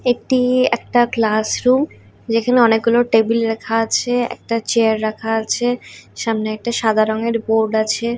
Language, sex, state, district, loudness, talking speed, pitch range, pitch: Bengali, female, Odisha, Khordha, -17 LUFS, 130 wpm, 220-240 Hz, 230 Hz